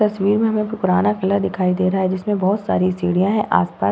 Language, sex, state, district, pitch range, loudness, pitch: Hindi, female, Uttar Pradesh, Muzaffarnagar, 185-210 Hz, -18 LUFS, 195 Hz